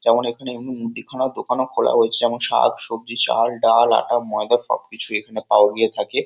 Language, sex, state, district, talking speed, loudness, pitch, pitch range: Bengali, male, West Bengal, Kolkata, 180 wpm, -19 LUFS, 115 Hz, 115-120 Hz